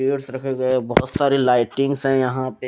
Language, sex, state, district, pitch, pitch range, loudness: Hindi, male, Odisha, Malkangiri, 130 Hz, 130-135 Hz, -20 LUFS